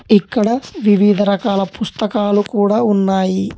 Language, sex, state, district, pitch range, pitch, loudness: Telugu, male, Telangana, Hyderabad, 200-215 Hz, 205 Hz, -15 LUFS